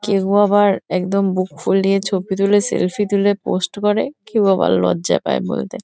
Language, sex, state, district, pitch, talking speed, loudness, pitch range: Bengali, female, West Bengal, Kolkata, 195 Hz, 165 wpm, -17 LUFS, 185-205 Hz